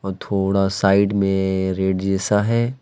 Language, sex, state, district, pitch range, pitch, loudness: Hindi, male, Jharkhand, Deoghar, 95-100 Hz, 95 Hz, -19 LUFS